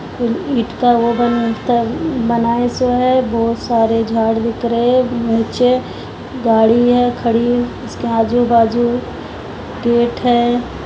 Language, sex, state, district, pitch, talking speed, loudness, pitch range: Hindi, female, Uttar Pradesh, Etah, 235 Hz, 125 wpm, -15 LUFS, 230-245 Hz